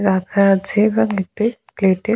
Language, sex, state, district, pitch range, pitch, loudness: Bengali, female, West Bengal, Jalpaiguri, 195-220 Hz, 200 Hz, -17 LUFS